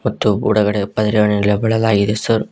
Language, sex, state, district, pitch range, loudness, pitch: Kannada, male, Karnataka, Koppal, 105-110 Hz, -16 LUFS, 105 Hz